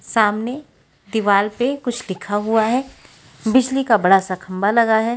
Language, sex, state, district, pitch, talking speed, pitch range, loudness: Hindi, female, Haryana, Rohtak, 220 Hz, 160 wpm, 195-240 Hz, -18 LUFS